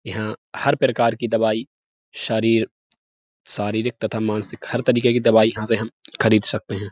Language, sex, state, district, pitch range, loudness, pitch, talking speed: Hindi, male, Uttar Pradesh, Budaun, 110-115 Hz, -21 LUFS, 110 Hz, 165 wpm